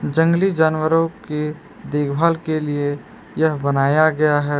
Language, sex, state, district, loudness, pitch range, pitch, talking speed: Hindi, male, Jharkhand, Palamu, -19 LUFS, 145-160 Hz, 155 Hz, 130 wpm